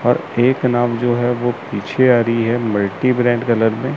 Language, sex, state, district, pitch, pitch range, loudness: Hindi, male, Chandigarh, Chandigarh, 120 Hz, 115-125 Hz, -17 LUFS